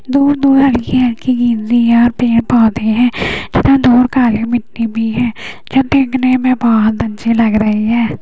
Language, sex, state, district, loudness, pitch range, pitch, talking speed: Hindi, female, Uttar Pradesh, Hamirpur, -12 LUFS, 225-255 Hz, 240 Hz, 190 wpm